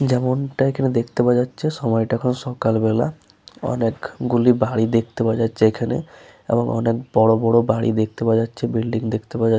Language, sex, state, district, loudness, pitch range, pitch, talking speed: Bengali, male, West Bengal, Paschim Medinipur, -20 LUFS, 110-125 Hz, 115 Hz, 180 wpm